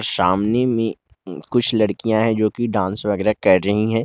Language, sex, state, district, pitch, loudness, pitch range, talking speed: Hindi, male, Jharkhand, Garhwa, 110 Hz, -19 LUFS, 100-115 Hz, 180 wpm